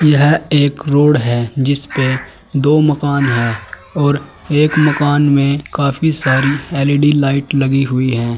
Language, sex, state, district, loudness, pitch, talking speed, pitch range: Hindi, male, Uttar Pradesh, Saharanpur, -14 LUFS, 140 Hz, 145 wpm, 135-145 Hz